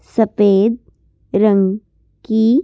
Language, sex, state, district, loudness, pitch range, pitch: Hindi, female, Madhya Pradesh, Bhopal, -15 LUFS, 200-225 Hz, 215 Hz